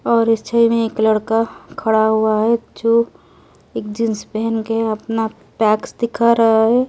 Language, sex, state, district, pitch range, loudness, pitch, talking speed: Hindi, female, Delhi, New Delhi, 220-230 Hz, -17 LUFS, 225 Hz, 155 wpm